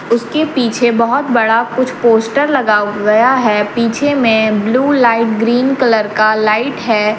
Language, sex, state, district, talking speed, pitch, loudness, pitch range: Hindi, female, Jharkhand, Deoghar, 150 wpm, 230 Hz, -12 LUFS, 220-255 Hz